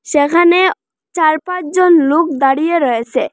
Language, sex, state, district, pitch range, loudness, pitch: Bengali, female, Assam, Hailakandi, 290-350 Hz, -13 LUFS, 320 Hz